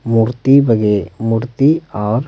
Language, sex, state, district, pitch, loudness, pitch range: Hindi, male, Bihar, Patna, 115 Hz, -14 LUFS, 110-135 Hz